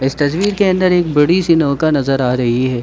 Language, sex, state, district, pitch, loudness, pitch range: Hindi, male, Jharkhand, Sahebganj, 150 Hz, -14 LUFS, 135-180 Hz